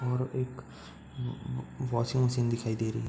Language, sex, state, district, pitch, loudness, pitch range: Hindi, male, Uttar Pradesh, Budaun, 120 Hz, -32 LUFS, 115-125 Hz